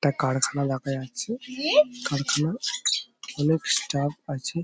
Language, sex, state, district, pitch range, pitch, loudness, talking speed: Bengali, male, West Bengal, Paschim Medinipur, 140-235 Hz, 145 Hz, -26 LUFS, 105 wpm